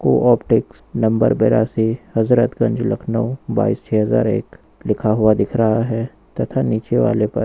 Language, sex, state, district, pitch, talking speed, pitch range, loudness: Hindi, male, Uttar Pradesh, Lucknow, 115 Hz, 155 wpm, 110-120 Hz, -18 LUFS